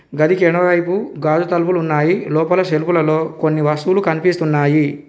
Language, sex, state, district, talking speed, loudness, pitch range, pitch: Telugu, male, Telangana, Komaram Bheem, 120 wpm, -16 LUFS, 155-175 Hz, 160 Hz